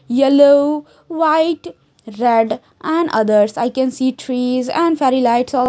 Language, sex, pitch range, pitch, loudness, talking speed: English, female, 240-310 Hz, 260 Hz, -15 LUFS, 135 wpm